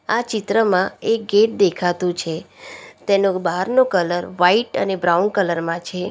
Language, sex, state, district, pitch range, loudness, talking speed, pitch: Gujarati, female, Gujarat, Valsad, 175-220 Hz, -19 LUFS, 145 wpm, 190 Hz